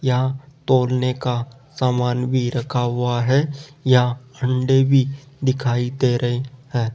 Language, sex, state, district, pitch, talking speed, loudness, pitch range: Hindi, male, Rajasthan, Jaipur, 130 Hz, 130 wpm, -20 LUFS, 125-135 Hz